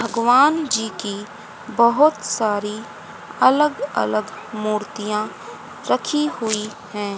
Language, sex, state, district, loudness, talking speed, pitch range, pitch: Hindi, female, Haryana, Rohtak, -20 LUFS, 90 wpm, 210-245 Hz, 215 Hz